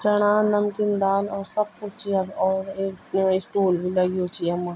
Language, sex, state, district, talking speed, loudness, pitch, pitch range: Garhwali, female, Uttarakhand, Tehri Garhwal, 190 wpm, -23 LUFS, 195 Hz, 185-205 Hz